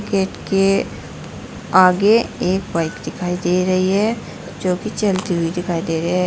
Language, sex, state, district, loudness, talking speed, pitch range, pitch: Hindi, female, Uttar Pradesh, Saharanpur, -18 LUFS, 155 wpm, 180-195 Hz, 185 Hz